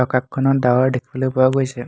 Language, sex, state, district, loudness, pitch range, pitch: Assamese, male, Assam, Hailakandi, -18 LUFS, 125-130 Hz, 130 Hz